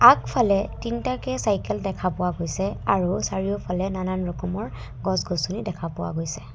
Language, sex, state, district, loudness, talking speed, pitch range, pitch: Assamese, female, Assam, Kamrup Metropolitan, -25 LUFS, 130 wpm, 160-190 Hz, 180 Hz